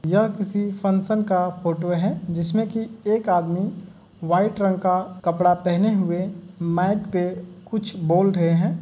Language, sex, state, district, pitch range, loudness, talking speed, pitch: Hindi, male, Uttar Pradesh, Muzaffarnagar, 175-200 Hz, -22 LUFS, 150 wpm, 185 Hz